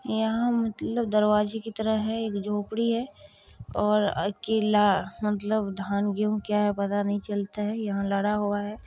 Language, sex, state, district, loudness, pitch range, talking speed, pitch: Maithili, female, Bihar, Supaul, -27 LUFS, 205-220 Hz, 170 wpm, 210 Hz